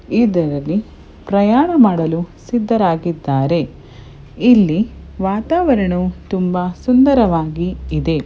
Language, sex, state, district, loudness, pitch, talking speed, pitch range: Kannada, female, Karnataka, Bellary, -16 LUFS, 180 Hz, 65 wpm, 160-225 Hz